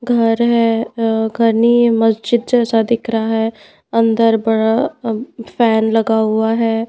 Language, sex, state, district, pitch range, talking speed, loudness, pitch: Hindi, female, Madhya Pradesh, Bhopal, 225-235 Hz, 140 wpm, -15 LUFS, 225 Hz